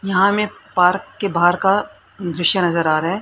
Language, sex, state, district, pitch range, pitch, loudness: Hindi, female, Haryana, Rohtak, 175-195 Hz, 180 Hz, -18 LUFS